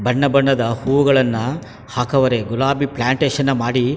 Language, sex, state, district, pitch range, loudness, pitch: Kannada, male, Karnataka, Chamarajanagar, 120-140 Hz, -17 LUFS, 130 Hz